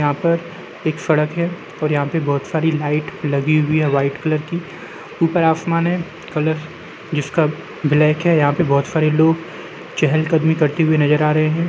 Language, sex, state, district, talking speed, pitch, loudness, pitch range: Hindi, male, Uttar Pradesh, Jalaun, 190 wpm, 155 Hz, -18 LUFS, 150-165 Hz